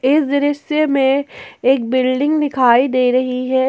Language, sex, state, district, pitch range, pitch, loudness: Hindi, female, Jharkhand, Ranchi, 255-290 Hz, 265 Hz, -16 LUFS